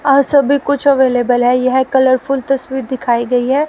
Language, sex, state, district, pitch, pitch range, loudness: Hindi, female, Haryana, Charkhi Dadri, 265 Hz, 255-280 Hz, -13 LUFS